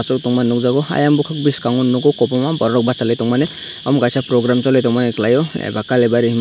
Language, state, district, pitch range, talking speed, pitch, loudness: Kokborok, Tripura, Dhalai, 120-140 Hz, 215 wpm, 125 Hz, -16 LUFS